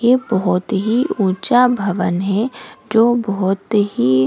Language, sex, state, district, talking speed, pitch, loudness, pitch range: Hindi, female, Goa, North and South Goa, 140 wpm, 200 Hz, -17 LUFS, 190-230 Hz